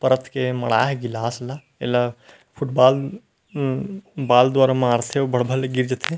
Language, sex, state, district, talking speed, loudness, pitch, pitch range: Chhattisgarhi, male, Chhattisgarh, Rajnandgaon, 175 wpm, -20 LUFS, 130 Hz, 125-135 Hz